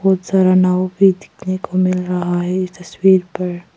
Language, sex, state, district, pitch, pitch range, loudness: Hindi, female, Arunachal Pradesh, Papum Pare, 185 Hz, 180-185 Hz, -16 LUFS